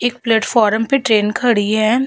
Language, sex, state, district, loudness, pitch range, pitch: Hindi, female, Bihar, Vaishali, -15 LUFS, 215-245 Hz, 225 Hz